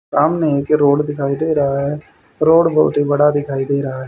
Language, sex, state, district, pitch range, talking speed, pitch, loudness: Hindi, male, Haryana, Rohtak, 140-155 Hz, 205 wpm, 145 Hz, -16 LUFS